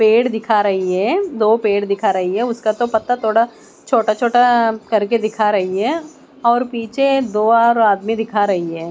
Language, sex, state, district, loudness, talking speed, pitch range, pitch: Hindi, female, Maharashtra, Mumbai Suburban, -16 LUFS, 180 wpm, 210-240 Hz, 225 Hz